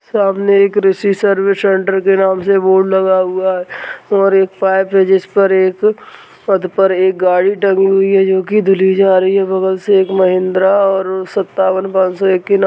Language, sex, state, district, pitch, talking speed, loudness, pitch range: Hindi, female, Maharashtra, Dhule, 190 Hz, 170 wpm, -12 LUFS, 190-195 Hz